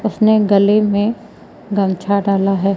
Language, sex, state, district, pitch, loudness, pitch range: Hindi, female, Madhya Pradesh, Umaria, 200 Hz, -15 LUFS, 195-215 Hz